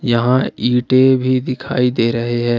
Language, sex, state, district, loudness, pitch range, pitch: Hindi, male, Jharkhand, Ranchi, -15 LUFS, 120-130 Hz, 125 Hz